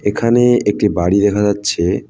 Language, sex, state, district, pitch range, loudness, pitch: Bengali, male, West Bengal, Cooch Behar, 100-115 Hz, -14 LUFS, 105 Hz